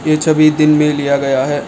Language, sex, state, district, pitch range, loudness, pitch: Hindi, male, Assam, Kamrup Metropolitan, 140-155 Hz, -12 LUFS, 150 Hz